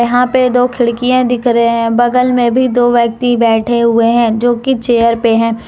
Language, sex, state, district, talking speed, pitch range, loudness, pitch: Hindi, female, Jharkhand, Deoghar, 210 wpm, 235-245 Hz, -11 LUFS, 240 Hz